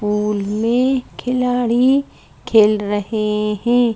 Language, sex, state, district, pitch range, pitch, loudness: Hindi, female, Madhya Pradesh, Bhopal, 210-245 Hz, 225 Hz, -17 LUFS